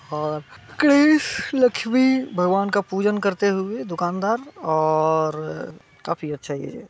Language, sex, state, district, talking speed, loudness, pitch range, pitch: Hindi, male, Bihar, Muzaffarpur, 120 wpm, -21 LUFS, 155-230 Hz, 190 Hz